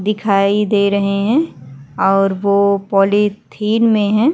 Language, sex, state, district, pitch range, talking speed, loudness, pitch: Hindi, female, Chhattisgarh, Kabirdham, 195-210 Hz, 125 wpm, -15 LUFS, 200 Hz